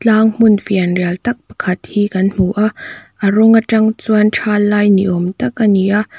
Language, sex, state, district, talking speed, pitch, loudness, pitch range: Mizo, female, Mizoram, Aizawl, 185 wpm, 210 Hz, -14 LUFS, 195-220 Hz